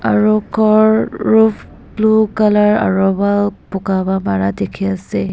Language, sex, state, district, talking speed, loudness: Nagamese, female, Nagaland, Dimapur, 135 wpm, -14 LUFS